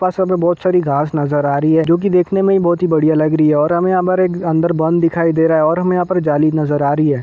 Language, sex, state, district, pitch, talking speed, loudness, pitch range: Hindi, male, Jharkhand, Jamtara, 165 Hz, 325 wpm, -14 LUFS, 155-180 Hz